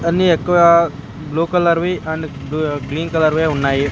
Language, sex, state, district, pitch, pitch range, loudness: Telugu, male, Andhra Pradesh, Sri Satya Sai, 160 Hz, 145-170 Hz, -16 LUFS